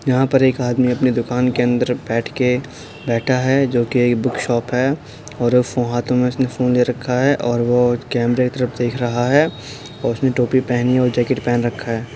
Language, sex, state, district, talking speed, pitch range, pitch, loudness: Hindi, male, Uttar Pradesh, Budaun, 220 wpm, 120-130 Hz, 125 Hz, -18 LUFS